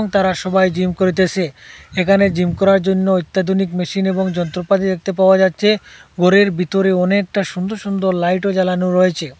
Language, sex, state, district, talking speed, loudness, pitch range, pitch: Bengali, male, Assam, Hailakandi, 145 wpm, -16 LUFS, 180-195 Hz, 190 Hz